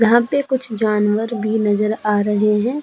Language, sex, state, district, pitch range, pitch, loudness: Hindi, female, Uttar Pradesh, Hamirpur, 210-235 Hz, 220 Hz, -18 LUFS